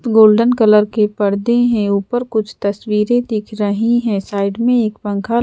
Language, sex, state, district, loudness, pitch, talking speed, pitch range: Hindi, female, Madhya Pradesh, Bhopal, -15 LUFS, 215 Hz, 165 wpm, 205-235 Hz